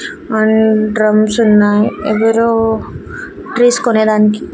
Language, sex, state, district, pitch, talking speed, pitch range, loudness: Telugu, female, Andhra Pradesh, Annamaya, 220 Hz, 65 wpm, 215-230 Hz, -12 LUFS